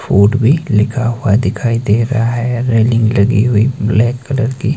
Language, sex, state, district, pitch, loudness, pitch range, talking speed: Hindi, male, Himachal Pradesh, Shimla, 115 Hz, -13 LUFS, 110-125 Hz, 175 wpm